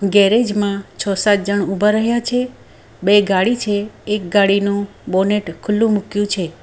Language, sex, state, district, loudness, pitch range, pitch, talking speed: Gujarati, female, Gujarat, Valsad, -17 LUFS, 195-210 Hz, 205 Hz, 155 wpm